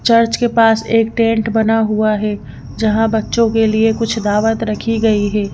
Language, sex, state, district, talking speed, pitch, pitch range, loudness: Hindi, female, Madhya Pradesh, Bhopal, 185 wpm, 225 Hz, 215-225 Hz, -15 LUFS